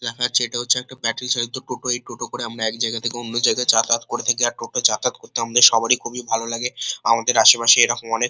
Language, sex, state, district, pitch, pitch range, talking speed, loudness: Bengali, male, West Bengal, Kolkata, 120 Hz, 115-125 Hz, 240 wpm, -19 LUFS